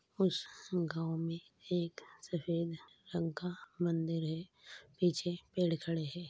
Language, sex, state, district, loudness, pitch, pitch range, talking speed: Hindi, female, Uttar Pradesh, Ghazipur, -37 LUFS, 170 Hz, 165-175 Hz, 125 wpm